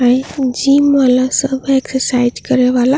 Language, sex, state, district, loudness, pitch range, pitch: Bhojpuri, female, Uttar Pradesh, Ghazipur, -13 LUFS, 250-270 Hz, 260 Hz